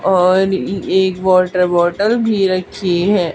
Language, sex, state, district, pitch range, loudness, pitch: Hindi, female, Haryana, Charkhi Dadri, 180-195 Hz, -15 LUFS, 185 Hz